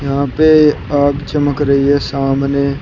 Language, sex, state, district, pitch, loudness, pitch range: Hindi, male, Uttar Pradesh, Shamli, 140 Hz, -13 LUFS, 140-145 Hz